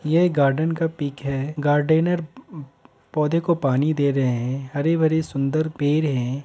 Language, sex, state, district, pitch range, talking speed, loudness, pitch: Hindi, male, Uttar Pradesh, Deoria, 140-160 Hz, 165 wpm, -22 LUFS, 150 Hz